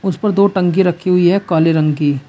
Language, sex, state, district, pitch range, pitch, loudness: Hindi, male, Uttar Pradesh, Shamli, 160-190 Hz, 180 Hz, -14 LUFS